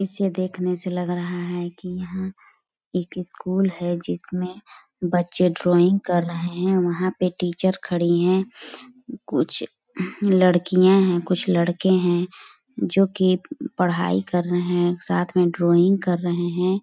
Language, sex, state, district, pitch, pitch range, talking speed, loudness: Hindi, female, Chhattisgarh, Balrampur, 180 Hz, 175-190 Hz, 145 wpm, -22 LUFS